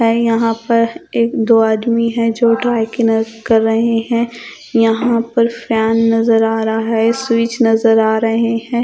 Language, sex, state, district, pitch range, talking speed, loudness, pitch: Hindi, female, Odisha, Khordha, 225-230 Hz, 155 wpm, -14 LUFS, 230 Hz